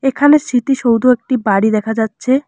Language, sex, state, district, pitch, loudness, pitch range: Bengali, female, West Bengal, Alipurduar, 250 Hz, -14 LUFS, 225-270 Hz